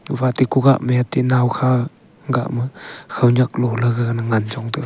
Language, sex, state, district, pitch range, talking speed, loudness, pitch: Wancho, male, Arunachal Pradesh, Longding, 120-130 Hz, 150 wpm, -18 LUFS, 125 Hz